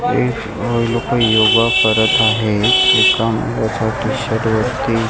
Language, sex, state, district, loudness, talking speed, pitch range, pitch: Marathi, male, Maharashtra, Mumbai Suburban, -14 LUFS, 120 wpm, 110-120 Hz, 115 Hz